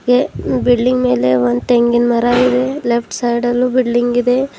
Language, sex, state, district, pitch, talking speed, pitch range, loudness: Kannada, female, Karnataka, Bidar, 245 Hz, 155 wpm, 235-250 Hz, -14 LUFS